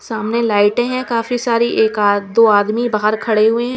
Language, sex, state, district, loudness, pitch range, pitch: Hindi, female, Chandigarh, Chandigarh, -15 LUFS, 215-235 Hz, 225 Hz